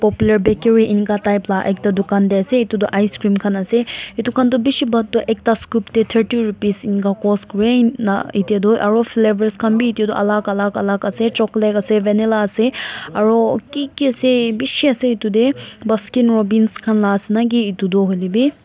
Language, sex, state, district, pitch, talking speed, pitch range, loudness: Nagamese, female, Nagaland, Kohima, 220 Hz, 200 wpm, 205-230 Hz, -16 LUFS